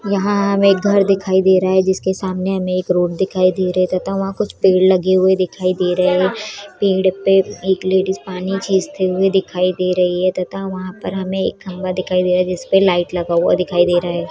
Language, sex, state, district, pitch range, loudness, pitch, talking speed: Chhattisgarhi, female, Chhattisgarh, Korba, 185-195 Hz, -16 LUFS, 185 Hz, 245 wpm